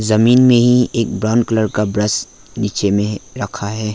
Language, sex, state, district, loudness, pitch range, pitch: Hindi, male, Arunachal Pradesh, Lower Dibang Valley, -15 LUFS, 105-120 Hz, 110 Hz